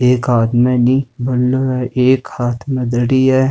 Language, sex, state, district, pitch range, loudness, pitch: Rajasthani, male, Rajasthan, Nagaur, 120-130 Hz, -15 LUFS, 125 Hz